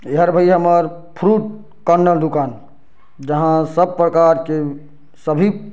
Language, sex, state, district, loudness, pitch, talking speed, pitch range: Chhattisgarhi, male, Chhattisgarh, Bilaspur, -16 LUFS, 170 Hz, 125 wpm, 150-180 Hz